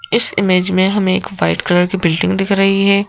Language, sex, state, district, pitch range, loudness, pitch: Hindi, female, Madhya Pradesh, Bhopal, 180-195 Hz, -14 LUFS, 190 Hz